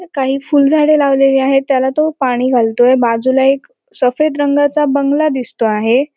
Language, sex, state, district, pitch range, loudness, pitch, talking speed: Marathi, female, Maharashtra, Sindhudurg, 255-295 Hz, -13 LUFS, 270 Hz, 155 wpm